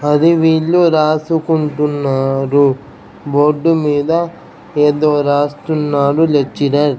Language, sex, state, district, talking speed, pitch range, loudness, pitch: Telugu, male, Andhra Pradesh, Krishna, 75 wpm, 145-160 Hz, -14 LUFS, 150 Hz